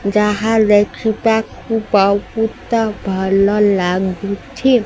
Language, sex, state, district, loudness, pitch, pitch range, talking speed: Odia, female, Odisha, Sambalpur, -16 LUFS, 210 Hz, 200-225 Hz, 60 wpm